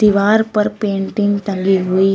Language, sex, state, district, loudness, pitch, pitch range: Hindi, female, Uttar Pradesh, Shamli, -16 LUFS, 205 Hz, 195-210 Hz